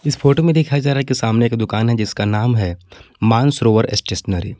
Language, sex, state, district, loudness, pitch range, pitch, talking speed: Hindi, male, Jharkhand, Palamu, -17 LUFS, 105-140 Hz, 115 Hz, 235 wpm